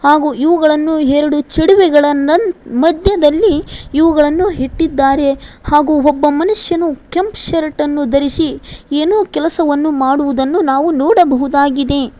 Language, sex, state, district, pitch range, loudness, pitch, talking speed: Kannada, female, Karnataka, Koppal, 285-335 Hz, -13 LUFS, 300 Hz, 100 wpm